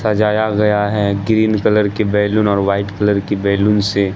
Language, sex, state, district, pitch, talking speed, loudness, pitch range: Hindi, male, Bihar, Katihar, 105 Hz, 190 wpm, -15 LUFS, 100-105 Hz